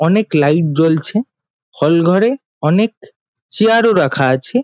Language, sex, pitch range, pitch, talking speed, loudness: Bengali, male, 150-220 Hz, 170 Hz, 130 wpm, -14 LUFS